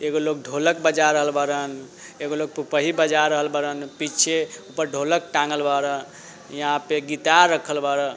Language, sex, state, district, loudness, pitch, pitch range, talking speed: Bajjika, male, Bihar, Vaishali, -22 LUFS, 150 Hz, 145-155 Hz, 160 wpm